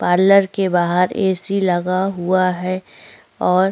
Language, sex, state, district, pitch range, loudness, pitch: Hindi, female, Chhattisgarh, Korba, 180-195 Hz, -17 LUFS, 185 Hz